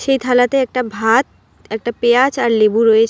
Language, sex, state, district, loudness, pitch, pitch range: Bengali, female, West Bengal, Alipurduar, -15 LUFS, 240 Hz, 225-260 Hz